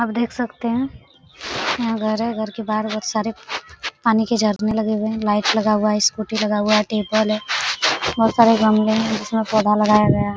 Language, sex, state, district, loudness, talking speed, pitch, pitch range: Hindi, female, Jharkhand, Sahebganj, -19 LUFS, 215 wpm, 215 Hz, 215-225 Hz